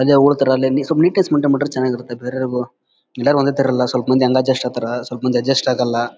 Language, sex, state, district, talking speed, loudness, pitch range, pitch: Kannada, male, Karnataka, Bellary, 205 wpm, -17 LUFS, 125-140 Hz, 130 Hz